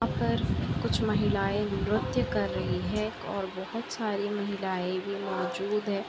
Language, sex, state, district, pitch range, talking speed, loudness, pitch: Hindi, female, Jharkhand, Sahebganj, 190-210 Hz, 150 wpm, -30 LUFS, 200 Hz